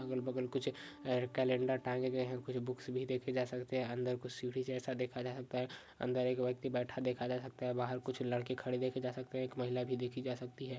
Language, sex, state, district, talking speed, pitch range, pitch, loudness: Hindi, male, Maharashtra, Pune, 245 wpm, 125-130 Hz, 125 Hz, -39 LUFS